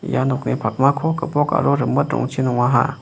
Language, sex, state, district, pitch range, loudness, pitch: Garo, male, Meghalaya, West Garo Hills, 130-145 Hz, -19 LUFS, 135 Hz